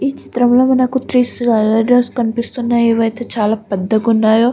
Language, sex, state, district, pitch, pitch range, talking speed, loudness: Telugu, female, Andhra Pradesh, Guntur, 235 Hz, 225-245 Hz, 145 wpm, -14 LUFS